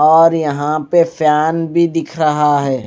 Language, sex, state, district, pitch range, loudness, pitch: Hindi, male, Odisha, Malkangiri, 150-165 Hz, -14 LUFS, 155 Hz